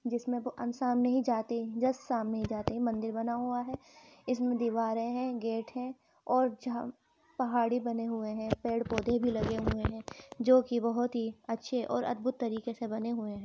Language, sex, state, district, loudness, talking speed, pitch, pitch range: Hindi, female, Uttar Pradesh, Muzaffarnagar, -33 LUFS, 185 wpm, 240 Hz, 230-250 Hz